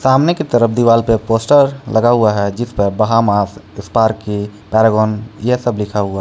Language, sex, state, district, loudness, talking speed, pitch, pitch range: Hindi, male, Jharkhand, Palamu, -14 LUFS, 175 wpm, 110 Hz, 105-120 Hz